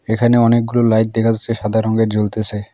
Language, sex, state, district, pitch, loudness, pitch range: Bengali, male, West Bengal, Alipurduar, 110 Hz, -15 LUFS, 110-115 Hz